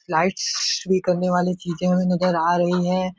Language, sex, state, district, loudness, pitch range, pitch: Hindi, male, Bihar, Supaul, -21 LUFS, 180-185 Hz, 180 Hz